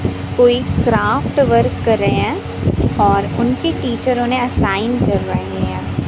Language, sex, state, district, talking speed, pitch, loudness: Hindi, female, Chhattisgarh, Raipur, 140 wpm, 240 Hz, -16 LUFS